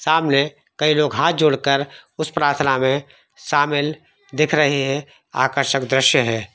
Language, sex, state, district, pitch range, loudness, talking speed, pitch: Hindi, male, Jharkhand, Jamtara, 135-150 Hz, -18 LUFS, 145 wpm, 145 Hz